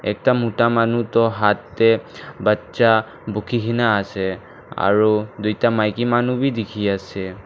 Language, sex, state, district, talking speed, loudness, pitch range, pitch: Nagamese, male, Nagaland, Dimapur, 145 wpm, -19 LUFS, 105-115 Hz, 110 Hz